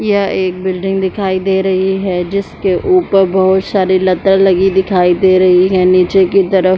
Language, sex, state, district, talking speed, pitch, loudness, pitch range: Hindi, female, Chhattisgarh, Bilaspur, 175 wpm, 190 Hz, -12 LUFS, 185-195 Hz